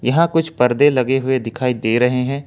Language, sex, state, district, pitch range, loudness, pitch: Hindi, male, Jharkhand, Ranchi, 125-140 Hz, -17 LUFS, 130 Hz